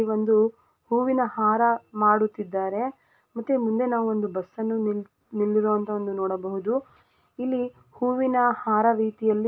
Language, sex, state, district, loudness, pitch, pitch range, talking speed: Kannada, female, Karnataka, Gulbarga, -25 LUFS, 220 Hz, 210-245 Hz, 100 wpm